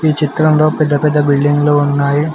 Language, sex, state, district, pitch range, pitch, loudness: Telugu, male, Telangana, Mahabubabad, 145-155 Hz, 150 Hz, -12 LUFS